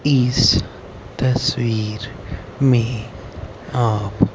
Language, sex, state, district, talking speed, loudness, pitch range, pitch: Hindi, male, Haryana, Rohtak, 55 wpm, -19 LUFS, 105-125 Hz, 115 Hz